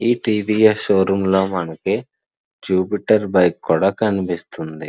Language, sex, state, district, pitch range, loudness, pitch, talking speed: Telugu, male, Andhra Pradesh, Srikakulam, 95-105 Hz, -18 LUFS, 95 Hz, 145 wpm